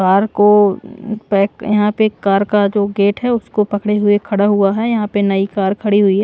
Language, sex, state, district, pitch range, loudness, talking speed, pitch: Hindi, female, Punjab, Pathankot, 200-210 Hz, -15 LUFS, 240 wpm, 205 Hz